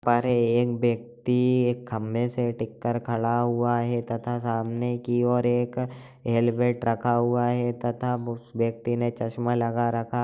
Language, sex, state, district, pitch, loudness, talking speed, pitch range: Hindi, male, Bihar, Darbhanga, 120 Hz, -26 LUFS, 165 wpm, 115-120 Hz